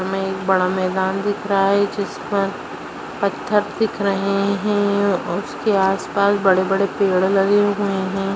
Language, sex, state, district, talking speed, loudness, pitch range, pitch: Hindi, female, Chhattisgarh, Rajnandgaon, 145 wpm, -19 LUFS, 195-200 Hz, 195 Hz